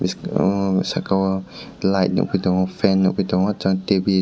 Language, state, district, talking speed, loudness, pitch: Kokborok, Tripura, West Tripura, 140 wpm, -20 LUFS, 95 Hz